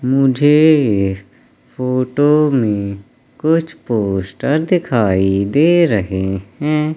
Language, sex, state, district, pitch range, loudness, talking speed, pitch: Hindi, male, Madhya Pradesh, Katni, 100-150 Hz, -15 LUFS, 85 wpm, 130 Hz